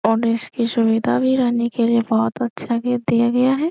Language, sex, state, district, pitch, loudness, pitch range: Hindi, female, Bihar, Jamui, 235 Hz, -19 LUFS, 230-245 Hz